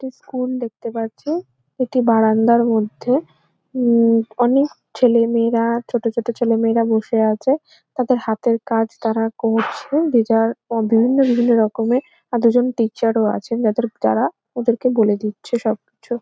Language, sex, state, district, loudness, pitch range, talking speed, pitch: Bengali, female, West Bengal, Jhargram, -18 LUFS, 225-245 Hz, 135 wpm, 230 Hz